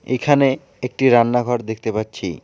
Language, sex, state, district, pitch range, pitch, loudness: Bengali, male, West Bengal, Alipurduar, 110-135 Hz, 120 Hz, -18 LUFS